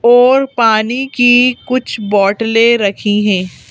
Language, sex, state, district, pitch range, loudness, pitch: Hindi, female, Madhya Pradesh, Bhopal, 205-245 Hz, -12 LUFS, 230 Hz